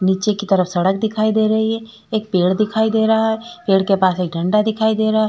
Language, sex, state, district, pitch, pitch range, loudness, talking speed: Hindi, female, Uttar Pradesh, Jalaun, 215 Hz, 190-220 Hz, -17 LUFS, 260 wpm